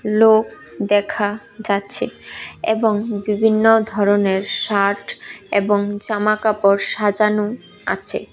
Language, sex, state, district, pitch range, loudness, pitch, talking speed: Bengali, female, Tripura, West Tripura, 205-220 Hz, -18 LUFS, 210 Hz, 85 wpm